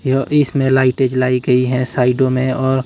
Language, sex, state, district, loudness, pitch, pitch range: Hindi, male, Himachal Pradesh, Shimla, -15 LUFS, 130 Hz, 125-130 Hz